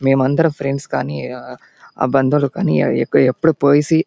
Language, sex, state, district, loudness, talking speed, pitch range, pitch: Telugu, male, Andhra Pradesh, Anantapur, -16 LUFS, 135 wpm, 135-160 Hz, 140 Hz